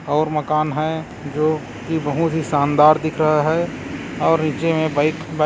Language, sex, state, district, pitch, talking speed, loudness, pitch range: Hindi, male, Chhattisgarh, Korba, 155 Hz, 175 wpm, -19 LUFS, 150-160 Hz